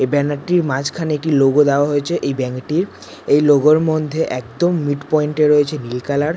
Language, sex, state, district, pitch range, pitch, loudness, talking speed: Bengali, male, West Bengal, North 24 Parganas, 140-155 Hz, 145 Hz, -17 LUFS, 215 wpm